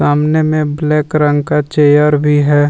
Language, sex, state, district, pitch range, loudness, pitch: Hindi, male, Jharkhand, Deoghar, 145-150 Hz, -12 LUFS, 150 Hz